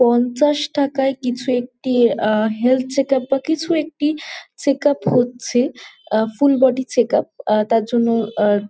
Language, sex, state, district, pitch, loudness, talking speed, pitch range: Bengali, female, West Bengal, Jalpaiguri, 250 Hz, -18 LUFS, 145 wpm, 235-280 Hz